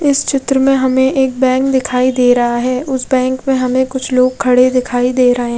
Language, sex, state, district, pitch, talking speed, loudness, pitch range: Hindi, female, Odisha, Khordha, 255 Hz, 215 wpm, -13 LUFS, 250-265 Hz